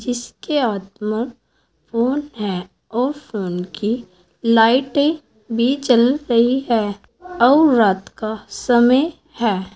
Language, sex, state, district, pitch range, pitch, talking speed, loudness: Hindi, female, Uttar Pradesh, Saharanpur, 210-265 Hz, 235 Hz, 110 wpm, -18 LUFS